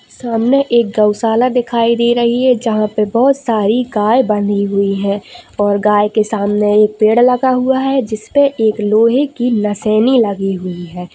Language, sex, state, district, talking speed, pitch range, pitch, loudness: Hindi, female, Chhattisgarh, Jashpur, 170 wpm, 210-245 Hz, 220 Hz, -13 LUFS